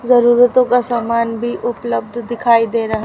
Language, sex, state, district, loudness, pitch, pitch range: Hindi, female, Haryana, Rohtak, -15 LUFS, 235 Hz, 230-240 Hz